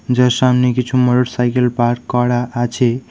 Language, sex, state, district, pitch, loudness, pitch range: Bengali, male, West Bengal, Alipurduar, 125 Hz, -15 LUFS, 120-125 Hz